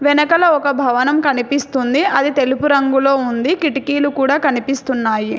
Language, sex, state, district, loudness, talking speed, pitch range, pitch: Telugu, female, Telangana, Hyderabad, -15 LUFS, 120 wpm, 260-290 Hz, 275 Hz